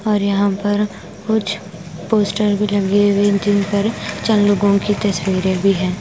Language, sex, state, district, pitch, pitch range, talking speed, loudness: Hindi, female, Punjab, Kapurthala, 205 Hz, 195-210 Hz, 160 wpm, -17 LUFS